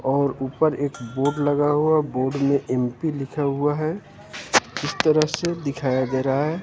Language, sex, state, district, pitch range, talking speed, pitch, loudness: Hindi, male, Haryana, Jhajjar, 135-155 Hz, 180 wpm, 140 Hz, -22 LUFS